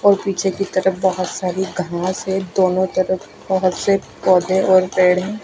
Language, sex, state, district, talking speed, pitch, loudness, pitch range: Hindi, female, Punjab, Fazilka, 175 wpm, 185 Hz, -18 LUFS, 185-190 Hz